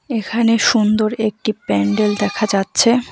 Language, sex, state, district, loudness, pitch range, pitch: Bengali, female, West Bengal, Alipurduar, -16 LUFS, 205-230 Hz, 215 Hz